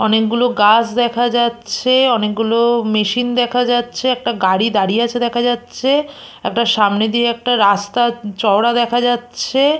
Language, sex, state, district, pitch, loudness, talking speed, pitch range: Bengali, female, West Bengal, Purulia, 235 Hz, -15 LUFS, 135 wpm, 220-245 Hz